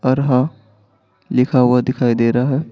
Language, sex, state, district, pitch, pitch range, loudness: Hindi, male, Bihar, Patna, 125 Hz, 115-130 Hz, -16 LUFS